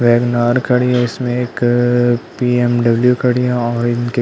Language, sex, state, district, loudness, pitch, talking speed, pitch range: Hindi, male, Delhi, New Delhi, -15 LUFS, 120 Hz, 155 wpm, 120-125 Hz